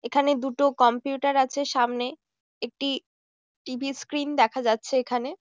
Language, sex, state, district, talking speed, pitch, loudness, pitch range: Bengali, female, West Bengal, Jhargram, 120 wpm, 270 Hz, -25 LUFS, 245-280 Hz